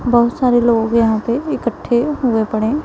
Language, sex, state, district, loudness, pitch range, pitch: Hindi, male, Punjab, Pathankot, -16 LUFS, 225-250 Hz, 240 Hz